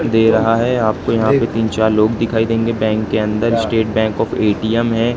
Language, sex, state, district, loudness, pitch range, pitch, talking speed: Hindi, male, Madhya Pradesh, Katni, -16 LUFS, 110-115 Hz, 110 Hz, 210 wpm